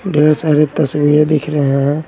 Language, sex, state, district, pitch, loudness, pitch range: Hindi, male, Bihar, Patna, 150 Hz, -13 LUFS, 145-155 Hz